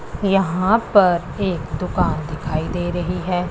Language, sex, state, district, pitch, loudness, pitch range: Hindi, female, Punjab, Pathankot, 175 Hz, -20 LUFS, 160-190 Hz